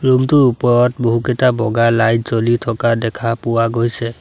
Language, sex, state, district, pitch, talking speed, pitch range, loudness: Assamese, male, Assam, Sonitpur, 115 Hz, 155 wpm, 115-125 Hz, -15 LUFS